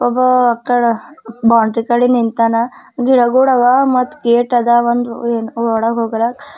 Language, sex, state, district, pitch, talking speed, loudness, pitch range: Kannada, female, Karnataka, Bidar, 240 Hz, 80 wpm, -14 LUFS, 230-250 Hz